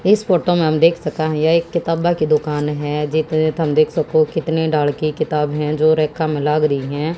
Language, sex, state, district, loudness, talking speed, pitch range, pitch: Hindi, female, Haryana, Jhajjar, -17 LUFS, 235 wpm, 150-160 Hz, 155 Hz